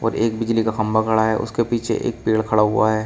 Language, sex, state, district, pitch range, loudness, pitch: Hindi, male, Uttar Pradesh, Shamli, 110-115 Hz, -20 LUFS, 110 Hz